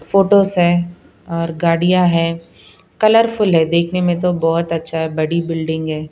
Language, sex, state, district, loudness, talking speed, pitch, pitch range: Hindi, female, Punjab, Pathankot, -16 LUFS, 145 wpm, 170 Hz, 165-180 Hz